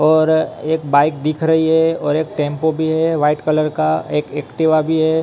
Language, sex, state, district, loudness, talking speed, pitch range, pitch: Hindi, male, Maharashtra, Mumbai Suburban, -16 LUFS, 205 wpm, 150-160 Hz, 155 Hz